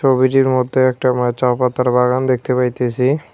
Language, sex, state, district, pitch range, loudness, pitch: Bengali, male, West Bengal, Cooch Behar, 125-130 Hz, -16 LUFS, 125 Hz